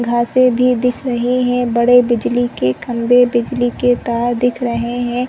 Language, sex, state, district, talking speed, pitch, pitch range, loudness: Hindi, female, Chhattisgarh, Rajnandgaon, 170 wpm, 245 Hz, 240-245 Hz, -15 LUFS